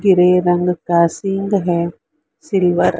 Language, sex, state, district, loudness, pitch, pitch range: Hindi, female, Maharashtra, Mumbai Suburban, -16 LUFS, 180 Hz, 175-195 Hz